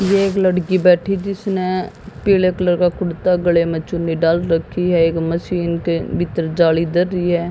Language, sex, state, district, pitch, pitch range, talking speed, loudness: Hindi, female, Haryana, Jhajjar, 175 Hz, 170-185 Hz, 185 wpm, -17 LUFS